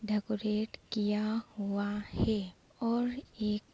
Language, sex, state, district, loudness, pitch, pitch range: Hindi, female, Bihar, Begusarai, -34 LUFS, 215 Hz, 210-220 Hz